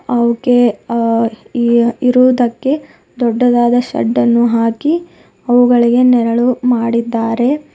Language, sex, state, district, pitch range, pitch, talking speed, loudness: Kannada, female, Karnataka, Bidar, 235-250 Hz, 240 Hz, 85 wpm, -13 LUFS